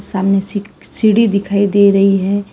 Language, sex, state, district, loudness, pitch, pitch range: Hindi, female, Karnataka, Bangalore, -13 LUFS, 200 Hz, 195-205 Hz